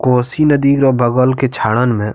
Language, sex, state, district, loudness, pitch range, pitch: Maithili, male, Bihar, Madhepura, -13 LUFS, 120-135 Hz, 125 Hz